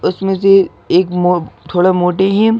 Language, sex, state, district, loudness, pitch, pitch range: Hindi, male, Madhya Pradesh, Bhopal, -13 LUFS, 185 Hz, 180-195 Hz